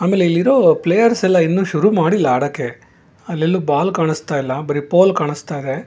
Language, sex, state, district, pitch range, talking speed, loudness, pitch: Kannada, male, Karnataka, Bangalore, 145-190 Hz, 175 wpm, -16 LUFS, 170 Hz